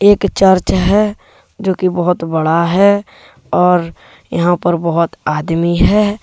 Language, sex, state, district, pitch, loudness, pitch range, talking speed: Hindi, male, Jharkhand, Deoghar, 180 Hz, -14 LUFS, 170-200 Hz, 135 wpm